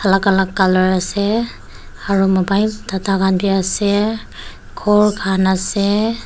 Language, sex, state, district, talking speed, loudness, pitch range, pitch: Nagamese, female, Nagaland, Dimapur, 125 wpm, -16 LUFS, 190-210 Hz, 195 Hz